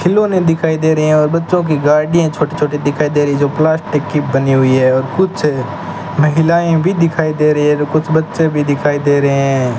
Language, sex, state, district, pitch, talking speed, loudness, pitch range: Hindi, male, Rajasthan, Bikaner, 150 Hz, 220 wpm, -13 LUFS, 145-160 Hz